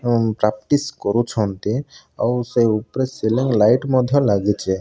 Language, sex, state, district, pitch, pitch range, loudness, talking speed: Odia, male, Odisha, Malkangiri, 120 Hz, 105-130 Hz, -19 LUFS, 110 wpm